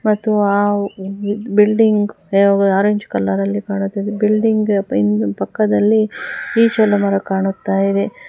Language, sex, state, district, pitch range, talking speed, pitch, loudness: Kannada, female, Karnataka, Bangalore, 195-210 Hz, 85 wpm, 200 Hz, -16 LUFS